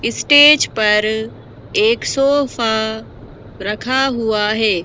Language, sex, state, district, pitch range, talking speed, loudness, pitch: Hindi, female, Madhya Pradesh, Bhopal, 220-285 Hz, 85 wpm, -15 LUFS, 225 Hz